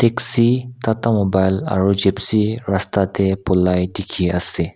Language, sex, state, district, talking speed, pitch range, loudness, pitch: Nagamese, male, Nagaland, Kohima, 125 wpm, 95-115 Hz, -17 LUFS, 100 Hz